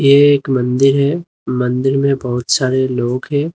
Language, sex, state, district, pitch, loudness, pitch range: Hindi, male, Uttar Pradesh, Lalitpur, 135 Hz, -15 LUFS, 125-140 Hz